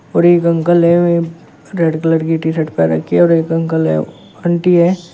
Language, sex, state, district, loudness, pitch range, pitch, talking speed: Hindi, female, Uttar Pradesh, Shamli, -13 LUFS, 160-170 Hz, 165 Hz, 210 wpm